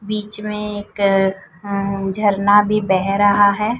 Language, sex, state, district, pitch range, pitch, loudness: Hindi, female, Chhattisgarh, Raipur, 195-210 Hz, 205 Hz, -17 LUFS